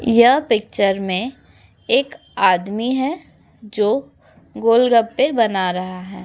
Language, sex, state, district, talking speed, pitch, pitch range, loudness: Hindi, female, Uttar Pradesh, Etah, 115 wpm, 230 Hz, 195-250 Hz, -18 LUFS